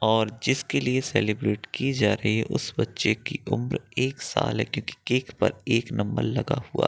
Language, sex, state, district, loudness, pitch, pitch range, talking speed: Hindi, male, Bihar, East Champaran, -26 LUFS, 110 Hz, 105-130 Hz, 200 wpm